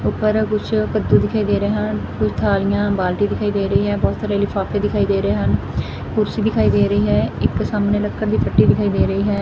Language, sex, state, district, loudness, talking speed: Punjabi, female, Punjab, Fazilka, -18 LUFS, 225 wpm